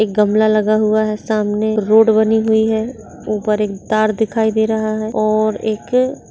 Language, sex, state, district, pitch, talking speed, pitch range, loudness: Hindi, female, Uttarakhand, Tehri Garhwal, 215 Hz, 190 wpm, 215-220 Hz, -16 LUFS